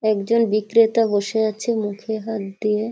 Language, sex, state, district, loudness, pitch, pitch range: Bengali, female, West Bengal, Kolkata, -20 LUFS, 220 Hz, 210-225 Hz